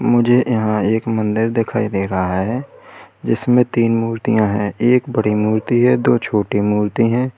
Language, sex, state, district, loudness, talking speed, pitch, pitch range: Hindi, male, Uttar Pradesh, Lalitpur, -17 LUFS, 170 wpm, 115 Hz, 105-120 Hz